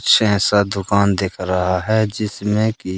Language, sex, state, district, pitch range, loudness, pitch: Hindi, male, Madhya Pradesh, Katni, 95-110 Hz, -18 LUFS, 100 Hz